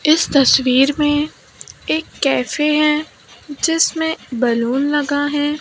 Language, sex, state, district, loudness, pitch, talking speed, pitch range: Hindi, male, Maharashtra, Mumbai Suburban, -16 LUFS, 290 Hz, 105 wpm, 270-305 Hz